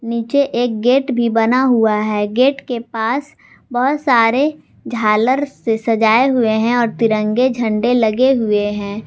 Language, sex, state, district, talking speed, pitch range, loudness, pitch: Hindi, female, Jharkhand, Garhwa, 150 wpm, 220-255 Hz, -16 LUFS, 235 Hz